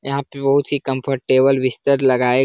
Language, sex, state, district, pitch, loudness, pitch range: Hindi, male, Uttar Pradesh, Jalaun, 135 Hz, -18 LUFS, 130-140 Hz